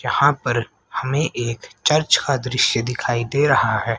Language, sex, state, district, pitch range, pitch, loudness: Hindi, female, Haryana, Rohtak, 115-140 Hz, 125 Hz, -19 LUFS